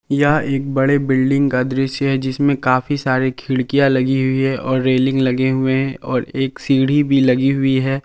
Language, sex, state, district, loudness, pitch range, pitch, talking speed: Hindi, male, Jharkhand, Palamu, -17 LUFS, 130-135 Hz, 135 Hz, 195 wpm